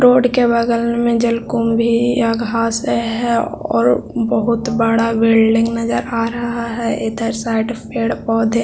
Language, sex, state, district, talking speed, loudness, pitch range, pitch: Hindi, male, Bihar, Jahanabad, 155 wpm, -16 LUFS, 230-235 Hz, 230 Hz